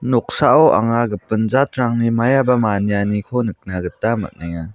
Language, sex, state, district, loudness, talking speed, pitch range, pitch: Garo, male, Meghalaya, West Garo Hills, -17 LUFS, 115 wpm, 100-120 Hz, 110 Hz